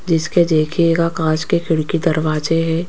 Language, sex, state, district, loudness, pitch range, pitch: Hindi, female, Rajasthan, Jaipur, -17 LUFS, 160-170 Hz, 165 Hz